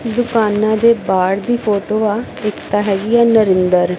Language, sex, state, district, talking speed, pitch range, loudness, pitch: Punjabi, female, Punjab, Kapurthala, 165 wpm, 195-230 Hz, -15 LUFS, 210 Hz